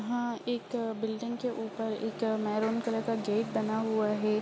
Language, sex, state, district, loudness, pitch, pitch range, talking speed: Hindi, female, Bihar, Jamui, -32 LUFS, 220 Hz, 215-230 Hz, 205 wpm